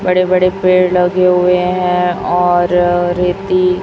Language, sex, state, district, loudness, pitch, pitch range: Hindi, female, Chhattisgarh, Raipur, -13 LUFS, 180 Hz, 180-185 Hz